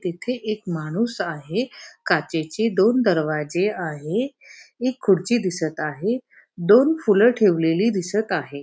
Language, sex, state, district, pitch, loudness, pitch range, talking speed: Marathi, female, Maharashtra, Pune, 195 Hz, -22 LUFS, 165-230 Hz, 120 wpm